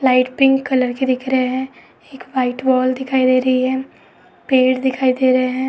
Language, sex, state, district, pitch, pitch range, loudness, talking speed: Hindi, female, Uttar Pradesh, Etah, 260 Hz, 255-265 Hz, -17 LUFS, 200 wpm